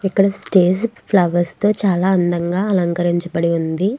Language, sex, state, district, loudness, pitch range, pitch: Telugu, female, Andhra Pradesh, Krishna, -17 LUFS, 175-195 Hz, 185 Hz